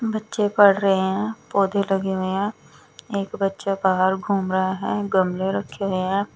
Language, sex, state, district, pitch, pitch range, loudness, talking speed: Hindi, female, Bihar, West Champaran, 195 Hz, 190-200 Hz, -22 LUFS, 170 wpm